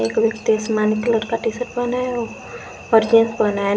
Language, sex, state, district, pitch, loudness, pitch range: Hindi, female, Jharkhand, Garhwa, 225 Hz, -19 LUFS, 215-235 Hz